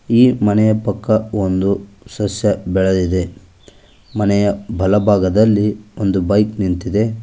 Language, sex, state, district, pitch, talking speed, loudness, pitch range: Kannada, male, Karnataka, Koppal, 105 Hz, 90 wpm, -16 LUFS, 95-110 Hz